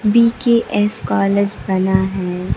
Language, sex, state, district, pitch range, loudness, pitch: Hindi, female, Bihar, Kaimur, 190-225 Hz, -16 LUFS, 200 Hz